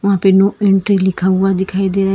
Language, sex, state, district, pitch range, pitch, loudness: Hindi, female, Karnataka, Bangalore, 190-195 Hz, 195 Hz, -14 LUFS